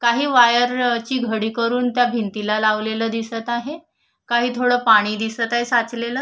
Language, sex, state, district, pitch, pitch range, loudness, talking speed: Marathi, female, Maharashtra, Solapur, 235 Hz, 225-245 Hz, -19 LUFS, 155 wpm